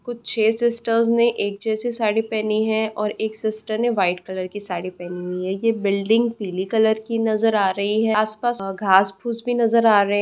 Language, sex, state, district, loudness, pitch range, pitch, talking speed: Hindi, female, Bihar, Jamui, -21 LUFS, 200-225 Hz, 215 Hz, 215 wpm